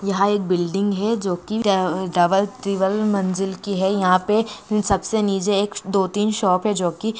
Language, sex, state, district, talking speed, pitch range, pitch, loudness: Hindi, female, Maharashtra, Sindhudurg, 190 wpm, 190-210 Hz, 200 Hz, -20 LUFS